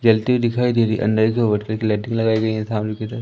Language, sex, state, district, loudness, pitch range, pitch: Hindi, male, Madhya Pradesh, Umaria, -19 LUFS, 110-115 Hz, 110 Hz